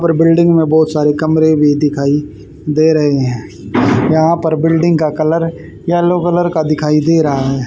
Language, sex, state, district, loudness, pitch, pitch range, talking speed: Hindi, female, Haryana, Charkhi Dadri, -12 LUFS, 155 Hz, 150-165 Hz, 180 wpm